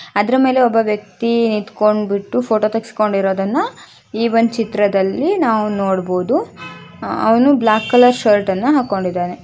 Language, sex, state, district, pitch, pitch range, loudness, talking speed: Kannada, female, Karnataka, Shimoga, 215 Hz, 200-245 Hz, -16 LUFS, 125 wpm